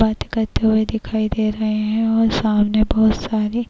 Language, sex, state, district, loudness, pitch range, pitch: Hindi, female, Uttar Pradesh, Jyotiba Phule Nagar, -18 LUFS, 215-225 Hz, 220 Hz